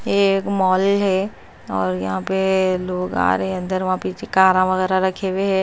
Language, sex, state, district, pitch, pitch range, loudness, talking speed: Hindi, female, Maharashtra, Mumbai Suburban, 185 Hz, 185-190 Hz, -19 LUFS, 205 wpm